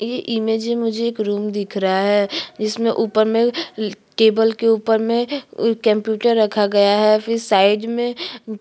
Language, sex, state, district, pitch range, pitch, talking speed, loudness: Hindi, female, Chhattisgarh, Sukma, 210-230 Hz, 220 Hz, 175 wpm, -18 LUFS